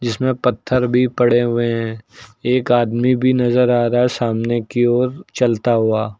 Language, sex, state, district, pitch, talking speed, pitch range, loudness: Hindi, male, Uttar Pradesh, Lucknow, 120 Hz, 185 wpm, 115-125 Hz, -17 LUFS